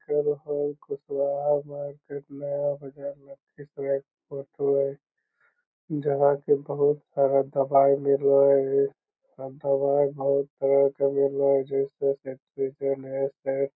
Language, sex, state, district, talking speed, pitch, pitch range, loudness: Magahi, male, Bihar, Lakhisarai, 115 wpm, 140 Hz, 140-145 Hz, -25 LUFS